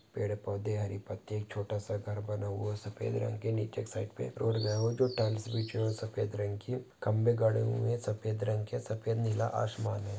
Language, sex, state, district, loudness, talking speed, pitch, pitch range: Hindi, male, Maharashtra, Pune, -34 LUFS, 225 wpm, 110 Hz, 105-115 Hz